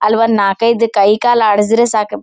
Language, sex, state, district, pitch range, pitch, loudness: Kannada, female, Karnataka, Gulbarga, 210-230 Hz, 220 Hz, -12 LUFS